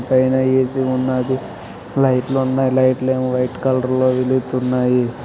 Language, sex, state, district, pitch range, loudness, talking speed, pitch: Telugu, male, Andhra Pradesh, Srikakulam, 125-130 Hz, -18 LUFS, 135 wpm, 130 Hz